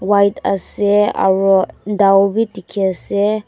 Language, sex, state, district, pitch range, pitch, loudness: Nagamese, female, Nagaland, Dimapur, 195-205 Hz, 200 Hz, -15 LUFS